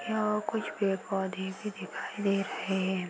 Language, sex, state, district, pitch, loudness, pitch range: Hindi, female, Uttar Pradesh, Varanasi, 195 Hz, -32 LUFS, 190-210 Hz